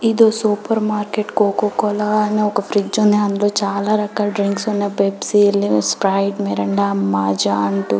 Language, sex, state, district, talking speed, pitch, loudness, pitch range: Telugu, female, Telangana, Karimnagar, 135 wpm, 205 Hz, -17 LUFS, 195-210 Hz